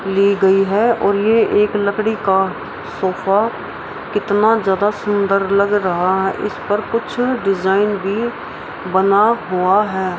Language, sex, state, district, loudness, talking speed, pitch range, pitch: Hindi, female, Bihar, Araria, -16 LUFS, 135 wpm, 190-210 Hz, 200 Hz